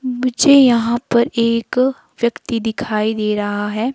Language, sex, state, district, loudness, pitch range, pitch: Hindi, female, Himachal Pradesh, Shimla, -16 LUFS, 220-255 Hz, 235 Hz